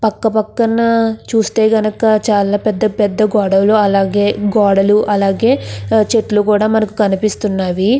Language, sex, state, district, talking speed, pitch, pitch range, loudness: Telugu, female, Andhra Pradesh, Krishna, 105 wpm, 215 Hz, 205-220 Hz, -14 LUFS